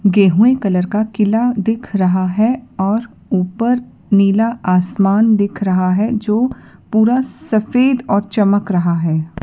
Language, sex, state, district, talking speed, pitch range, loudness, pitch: Hindi, female, Madhya Pradesh, Dhar, 135 wpm, 190-230 Hz, -15 LUFS, 210 Hz